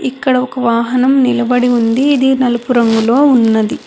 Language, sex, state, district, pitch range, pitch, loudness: Telugu, female, Telangana, Hyderabad, 235-265 Hz, 250 Hz, -12 LUFS